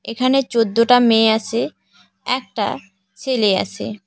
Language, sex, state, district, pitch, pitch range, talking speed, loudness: Bengali, female, West Bengal, Cooch Behar, 230 Hz, 205-250 Hz, 105 wpm, -17 LUFS